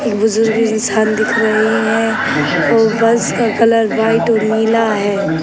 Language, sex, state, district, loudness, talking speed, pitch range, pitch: Hindi, male, Bihar, Sitamarhi, -13 LUFS, 145 wpm, 215-225 Hz, 220 Hz